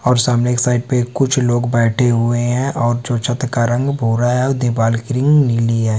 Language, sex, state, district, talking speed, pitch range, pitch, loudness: Hindi, male, Bihar, Supaul, 230 wpm, 120-130 Hz, 120 Hz, -16 LUFS